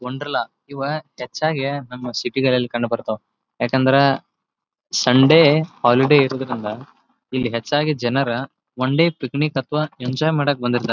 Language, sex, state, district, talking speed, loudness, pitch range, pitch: Kannada, male, Karnataka, Belgaum, 110 wpm, -19 LUFS, 125-145 Hz, 135 Hz